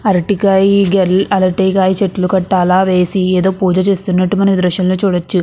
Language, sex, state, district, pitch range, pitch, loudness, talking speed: Telugu, female, Andhra Pradesh, Anantapur, 185-195 Hz, 190 Hz, -13 LUFS, 145 wpm